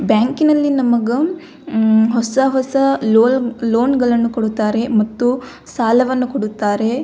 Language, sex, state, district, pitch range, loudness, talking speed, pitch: Kannada, female, Karnataka, Belgaum, 225-265 Hz, -16 LUFS, 95 wpm, 240 Hz